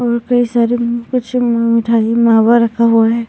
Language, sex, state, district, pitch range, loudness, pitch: Hindi, male, Uttarakhand, Tehri Garhwal, 230-240 Hz, -13 LUFS, 235 Hz